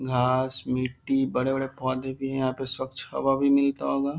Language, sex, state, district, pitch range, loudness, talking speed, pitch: Hindi, male, Bihar, Darbhanga, 130-135 Hz, -26 LUFS, 185 wpm, 130 Hz